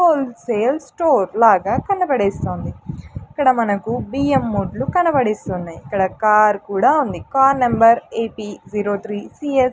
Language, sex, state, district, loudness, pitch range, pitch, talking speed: Telugu, female, Andhra Pradesh, Sri Satya Sai, -18 LUFS, 205-270 Hz, 230 Hz, 140 wpm